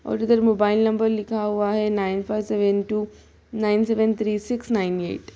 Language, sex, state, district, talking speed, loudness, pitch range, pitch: Hindi, female, Bihar, Gopalganj, 190 wpm, -22 LUFS, 205-220 Hz, 210 Hz